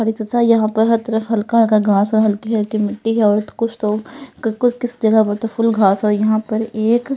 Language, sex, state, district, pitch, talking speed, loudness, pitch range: Hindi, female, Punjab, Fazilka, 220 Hz, 260 wpm, -16 LUFS, 215-230 Hz